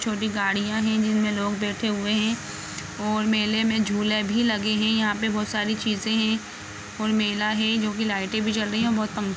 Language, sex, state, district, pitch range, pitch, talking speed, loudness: Hindi, female, Jharkhand, Jamtara, 210-220 Hz, 215 Hz, 210 wpm, -24 LUFS